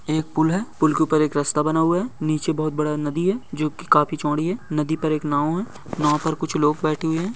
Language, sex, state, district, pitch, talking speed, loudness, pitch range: Hindi, male, Bihar, Begusarai, 155 Hz, 270 wpm, -22 LUFS, 150-165 Hz